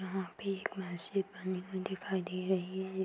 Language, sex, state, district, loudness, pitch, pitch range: Hindi, female, Uttar Pradesh, Budaun, -37 LUFS, 190 Hz, 185-195 Hz